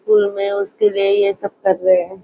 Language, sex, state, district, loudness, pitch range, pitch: Hindi, female, Maharashtra, Nagpur, -17 LUFS, 190-200 Hz, 200 Hz